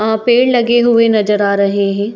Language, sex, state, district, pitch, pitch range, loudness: Hindi, female, Uttar Pradesh, Etah, 220 Hz, 200-240 Hz, -12 LUFS